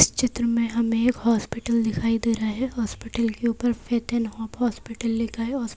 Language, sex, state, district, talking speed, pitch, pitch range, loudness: Hindi, female, Madhya Pradesh, Bhopal, 175 wpm, 230 Hz, 230-235 Hz, -25 LUFS